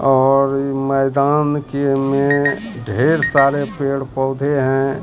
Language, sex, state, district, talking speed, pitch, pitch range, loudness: Hindi, male, Bihar, Katihar, 105 wpm, 140 Hz, 135-145 Hz, -17 LUFS